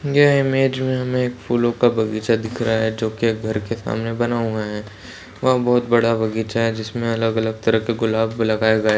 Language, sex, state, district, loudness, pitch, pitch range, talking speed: Hindi, male, Chhattisgarh, Rajnandgaon, -20 LUFS, 115 Hz, 110-120 Hz, 205 wpm